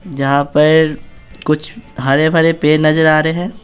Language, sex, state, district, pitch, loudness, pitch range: Hindi, male, Bihar, Patna, 155 Hz, -13 LUFS, 150-160 Hz